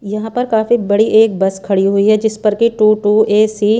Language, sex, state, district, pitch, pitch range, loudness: Hindi, female, Haryana, Charkhi Dadri, 215 Hz, 205-220 Hz, -13 LUFS